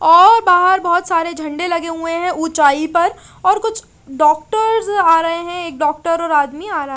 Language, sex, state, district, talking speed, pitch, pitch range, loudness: Hindi, female, Chandigarh, Chandigarh, 200 wpm, 335 Hz, 315-360 Hz, -15 LUFS